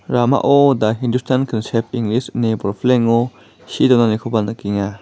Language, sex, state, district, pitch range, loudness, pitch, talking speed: Garo, male, Meghalaya, West Garo Hills, 110-125 Hz, -17 LUFS, 115 Hz, 120 wpm